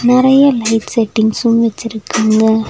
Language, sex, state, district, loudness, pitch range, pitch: Tamil, female, Tamil Nadu, Nilgiris, -12 LUFS, 220-240 Hz, 230 Hz